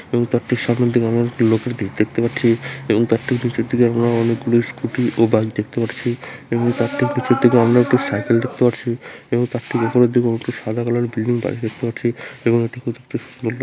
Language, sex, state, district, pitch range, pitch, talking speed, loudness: Bengali, male, West Bengal, Malda, 115-125 Hz, 120 Hz, 215 wpm, -19 LUFS